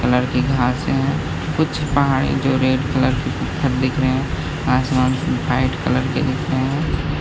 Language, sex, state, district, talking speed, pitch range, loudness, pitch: Hindi, male, Bihar, Gaya, 185 wpm, 130-140 Hz, -19 LUFS, 130 Hz